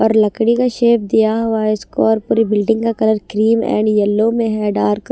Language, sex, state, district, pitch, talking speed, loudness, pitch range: Hindi, female, Himachal Pradesh, Shimla, 220 Hz, 225 wpm, -15 LUFS, 215-230 Hz